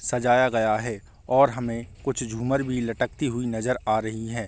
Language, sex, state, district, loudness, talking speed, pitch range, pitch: Hindi, male, Uttar Pradesh, Varanasi, -25 LUFS, 185 wpm, 110-125 Hz, 120 Hz